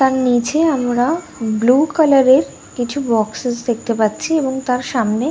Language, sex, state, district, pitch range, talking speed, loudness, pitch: Bengali, female, West Bengal, Dakshin Dinajpur, 240-280 Hz, 145 wpm, -16 LUFS, 250 Hz